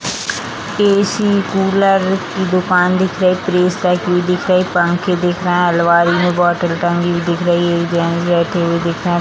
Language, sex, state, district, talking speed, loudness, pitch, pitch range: Hindi, female, Bihar, Purnia, 175 wpm, -15 LUFS, 180 Hz, 175-185 Hz